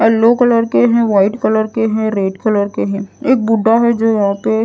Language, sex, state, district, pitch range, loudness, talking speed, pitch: Hindi, female, Odisha, Nuapada, 205-230 Hz, -14 LUFS, 245 wpm, 220 Hz